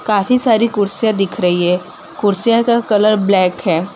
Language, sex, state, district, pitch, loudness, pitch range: Hindi, female, Gujarat, Valsad, 210 Hz, -14 LUFS, 185-230 Hz